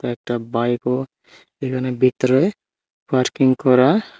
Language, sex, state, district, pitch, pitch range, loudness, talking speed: Bengali, male, Tripura, Unakoti, 130 Hz, 120-130 Hz, -19 LUFS, 85 wpm